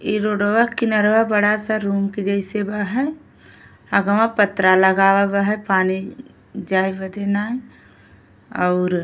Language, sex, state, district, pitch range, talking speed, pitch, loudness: Bhojpuri, female, Uttar Pradesh, Gorakhpur, 190-210 Hz, 140 wpm, 200 Hz, -19 LUFS